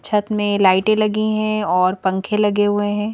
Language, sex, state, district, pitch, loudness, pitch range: Hindi, female, Madhya Pradesh, Bhopal, 205 Hz, -18 LUFS, 200-215 Hz